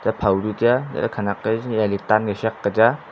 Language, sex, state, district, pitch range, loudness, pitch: Wancho, male, Arunachal Pradesh, Longding, 105-115 Hz, -21 LUFS, 110 Hz